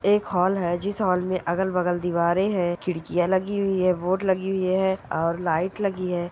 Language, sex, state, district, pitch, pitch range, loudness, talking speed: Hindi, female, Goa, North and South Goa, 185 Hz, 175-190 Hz, -24 LUFS, 210 wpm